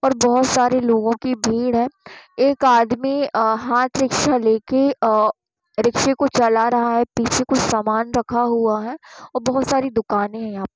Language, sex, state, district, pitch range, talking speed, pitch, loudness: Hindi, female, Bihar, Sitamarhi, 225-265 Hz, 180 wpm, 240 Hz, -18 LUFS